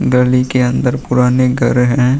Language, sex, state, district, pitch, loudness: Hindi, male, Uttar Pradesh, Muzaffarnagar, 125 Hz, -13 LUFS